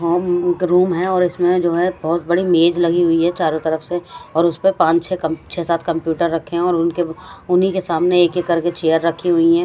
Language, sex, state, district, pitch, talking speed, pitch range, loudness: Hindi, female, Punjab, Fazilka, 170 Hz, 230 wpm, 165-180 Hz, -17 LUFS